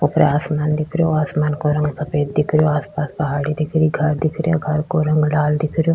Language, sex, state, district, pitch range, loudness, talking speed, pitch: Rajasthani, female, Rajasthan, Churu, 150-155 Hz, -19 LUFS, 240 wpm, 150 Hz